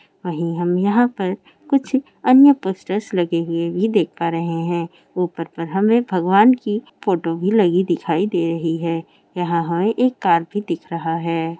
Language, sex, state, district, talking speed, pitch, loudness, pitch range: Hindi, female, Rajasthan, Churu, 175 wpm, 175 Hz, -19 LUFS, 170-205 Hz